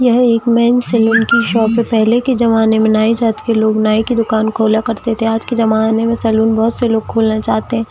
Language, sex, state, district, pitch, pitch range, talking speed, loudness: Hindi, female, Jharkhand, Jamtara, 225 Hz, 220-235 Hz, 245 wpm, -13 LUFS